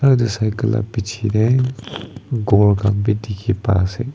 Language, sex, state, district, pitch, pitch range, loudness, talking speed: Nagamese, male, Nagaland, Kohima, 110 Hz, 105-120 Hz, -18 LUFS, 160 wpm